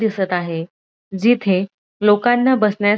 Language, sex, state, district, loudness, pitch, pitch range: Marathi, female, Maharashtra, Dhule, -17 LUFS, 205 Hz, 190-220 Hz